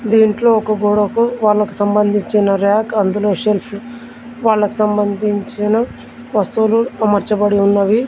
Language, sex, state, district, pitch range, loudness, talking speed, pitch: Telugu, male, Telangana, Komaram Bheem, 205-225 Hz, -15 LUFS, 95 wpm, 210 Hz